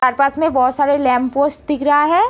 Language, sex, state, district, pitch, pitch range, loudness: Hindi, female, Uttar Pradesh, Etah, 285 Hz, 260-295 Hz, -16 LUFS